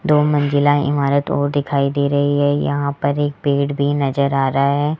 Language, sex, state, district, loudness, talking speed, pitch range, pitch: Hindi, female, Rajasthan, Jaipur, -17 LUFS, 205 wpm, 140-145 Hz, 145 Hz